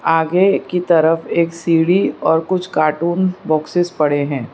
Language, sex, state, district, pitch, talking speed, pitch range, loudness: Hindi, female, Gujarat, Valsad, 165 Hz, 145 wpm, 155-180 Hz, -16 LUFS